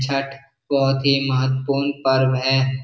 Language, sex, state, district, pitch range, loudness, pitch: Hindi, male, Bihar, Jahanabad, 130-140 Hz, -19 LUFS, 135 Hz